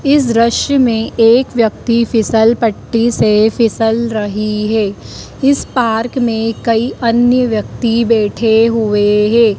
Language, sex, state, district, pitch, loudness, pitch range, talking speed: Hindi, female, Madhya Pradesh, Dhar, 230 Hz, -13 LUFS, 220-235 Hz, 125 wpm